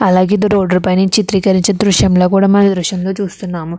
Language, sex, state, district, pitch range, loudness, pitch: Telugu, female, Andhra Pradesh, Krishna, 185-200 Hz, -12 LUFS, 190 Hz